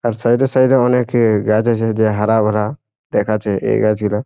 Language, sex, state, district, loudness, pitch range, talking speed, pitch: Bengali, male, West Bengal, Jhargram, -15 LUFS, 105-120 Hz, 185 wpm, 110 Hz